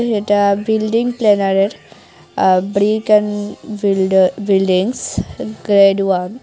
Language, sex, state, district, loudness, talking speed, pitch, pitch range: Bengali, female, Tripura, Unakoti, -15 LUFS, 95 wpm, 205 Hz, 195-215 Hz